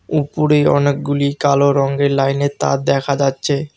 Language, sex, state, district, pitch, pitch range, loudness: Bengali, male, West Bengal, Alipurduar, 140 Hz, 140-145 Hz, -16 LUFS